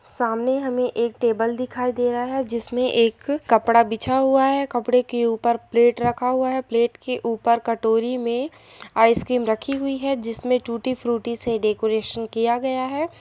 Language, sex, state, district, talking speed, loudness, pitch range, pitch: Hindi, female, Uttar Pradesh, Jalaun, 175 wpm, -21 LUFS, 230-255 Hz, 240 Hz